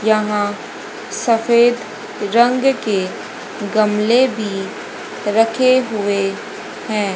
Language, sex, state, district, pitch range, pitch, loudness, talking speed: Hindi, female, Haryana, Rohtak, 205-235 Hz, 215 Hz, -17 LUFS, 75 wpm